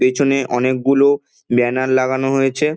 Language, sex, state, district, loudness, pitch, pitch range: Bengali, male, West Bengal, Dakshin Dinajpur, -16 LUFS, 130 Hz, 130-140 Hz